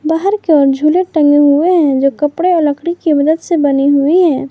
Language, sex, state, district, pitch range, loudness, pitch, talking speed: Hindi, female, Jharkhand, Garhwa, 285-340 Hz, -11 LUFS, 305 Hz, 225 wpm